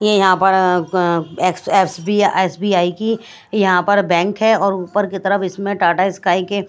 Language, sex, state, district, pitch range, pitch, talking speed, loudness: Hindi, female, Bihar, West Champaran, 180-200 Hz, 190 Hz, 190 wpm, -16 LUFS